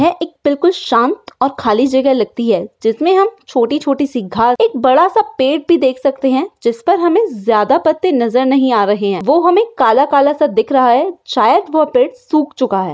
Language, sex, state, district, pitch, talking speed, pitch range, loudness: Hindi, female, Maharashtra, Aurangabad, 275 Hz, 200 wpm, 240-340 Hz, -13 LUFS